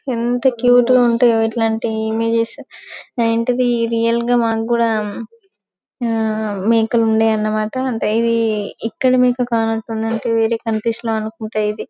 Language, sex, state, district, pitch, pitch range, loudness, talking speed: Telugu, female, Telangana, Karimnagar, 230 Hz, 220-240 Hz, -17 LUFS, 120 wpm